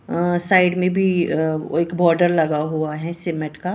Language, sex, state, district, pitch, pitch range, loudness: Hindi, female, Maharashtra, Washim, 170 Hz, 160-180 Hz, -19 LUFS